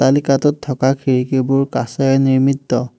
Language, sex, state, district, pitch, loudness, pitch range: Assamese, male, Assam, Hailakandi, 135 Hz, -16 LUFS, 130-135 Hz